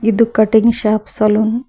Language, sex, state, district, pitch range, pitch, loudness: Kannada, female, Karnataka, Koppal, 215-230 Hz, 220 Hz, -14 LUFS